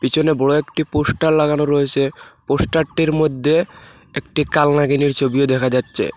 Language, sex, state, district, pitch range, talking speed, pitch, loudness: Bengali, male, Assam, Hailakandi, 135-155 Hz, 125 wpm, 145 Hz, -17 LUFS